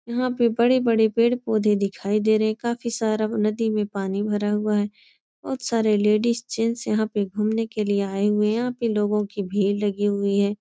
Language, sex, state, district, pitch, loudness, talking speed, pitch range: Hindi, female, Uttar Pradesh, Etah, 215 Hz, -23 LUFS, 205 wpm, 205-230 Hz